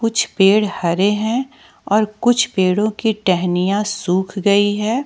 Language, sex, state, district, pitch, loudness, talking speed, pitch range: Hindi, female, Jharkhand, Ranchi, 205 Hz, -17 LUFS, 140 wpm, 190-220 Hz